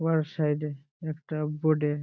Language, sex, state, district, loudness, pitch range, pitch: Bengali, male, West Bengal, Jalpaiguri, -29 LUFS, 150-155 Hz, 150 Hz